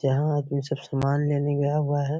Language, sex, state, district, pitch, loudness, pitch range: Hindi, male, Bihar, Muzaffarpur, 145 Hz, -25 LUFS, 140-145 Hz